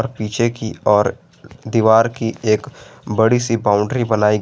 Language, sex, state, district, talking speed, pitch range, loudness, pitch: Hindi, male, Jharkhand, Garhwa, 135 wpm, 105-115 Hz, -17 LUFS, 110 Hz